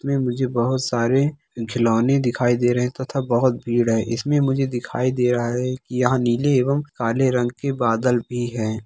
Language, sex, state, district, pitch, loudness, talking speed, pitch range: Hindi, male, Bihar, Darbhanga, 125 Hz, -21 LUFS, 190 wpm, 120-130 Hz